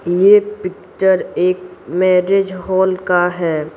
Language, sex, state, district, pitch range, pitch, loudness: Hindi, female, Bihar, Patna, 180-190 Hz, 185 Hz, -15 LUFS